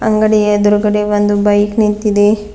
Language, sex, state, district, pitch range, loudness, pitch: Kannada, female, Karnataka, Bidar, 205-210 Hz, -12 LUFS, 210 Hz